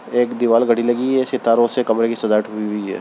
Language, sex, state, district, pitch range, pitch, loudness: Hindi, male, Rajasthan, Churu, 110-120 Hz, 115 Hz, -18 LUFS